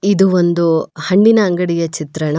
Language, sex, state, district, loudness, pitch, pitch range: Kannada, female, Karnataka, Bangalore, -14 LUFS, 175 Hz, 160-190 Hz